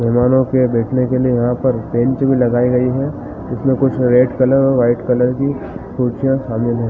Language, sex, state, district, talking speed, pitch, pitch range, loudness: Hindi, male, Chhattisgarh, Balrampur, 210 wpm, 125 Hz, 120-130 Hz, -15 LUFS